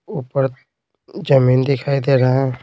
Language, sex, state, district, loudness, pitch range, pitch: Hindi, male, Bihar, Patna, -17 LUFS, 130-140 Hz, 135 Hz